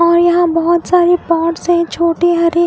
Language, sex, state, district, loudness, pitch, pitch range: Hindi, female, Odisha, Khordha, -13 LUFS, 340 Hz, 335-345 Hz